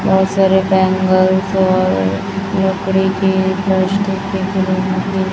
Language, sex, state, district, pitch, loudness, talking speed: Hindi, female, Chhattisgarh, Raipur, 190 Hz, -15 LUFS, 80 wpm